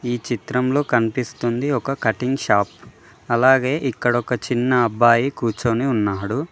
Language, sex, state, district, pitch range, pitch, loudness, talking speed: Telugu, male, Telangana, Mahabubabad, 115-135 Hz, 120 Hz, -20 LUFS, 120 wpm